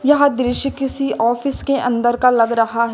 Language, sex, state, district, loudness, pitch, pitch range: Hindi, female, Uttar Pradesh, Lucknow, -17 LUFS, 250 Hz, 235-275 Hz